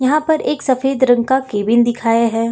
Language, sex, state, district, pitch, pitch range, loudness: Hindi, female, Uttar Pradesh, Lucknow, 245 Hz, 230-270 Hz, -15 LUFS